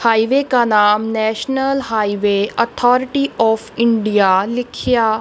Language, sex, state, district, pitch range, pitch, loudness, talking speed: Hindi, female, Punjab, Kapurthala, 215-245 Hz, 225 Hz, -16 LUFS, 105 wpm